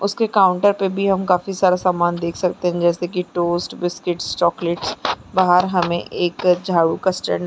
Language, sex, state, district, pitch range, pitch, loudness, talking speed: Chhattisgarhi, female, Chhattisgarh, Jashpur, 175-185 Hz, 180 Hz, -19 LUFS, 175 wpm